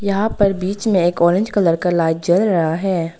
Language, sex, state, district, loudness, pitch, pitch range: Hindi, female, Arunachal Pradesh, Lower Dibang Valley, -17 LUFS, 180 Hz, 170-200 Hz